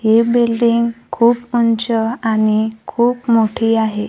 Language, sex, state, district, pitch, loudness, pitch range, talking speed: Marathi, female, Maharashtra, Gondia, 230 Hz, -15 LUFS, 220-235 Hz, 120 wpm